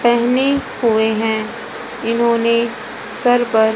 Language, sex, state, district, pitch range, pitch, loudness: Hindi, female, Haryana, Rohtak, 220-240 Hz, 235 Hz, -16 LUFS